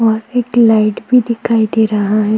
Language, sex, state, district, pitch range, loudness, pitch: Hindi, female, Chhattisgarh, Kabirdham, 215-235 Hz, -13 LUFS, 225 Hz